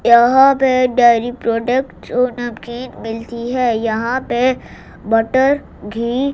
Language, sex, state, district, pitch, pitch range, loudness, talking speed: Hindi, female, Gujarat, Gandhinagar, 245 Hz, 230-255 Hz, -16 LUFS, 125 wpm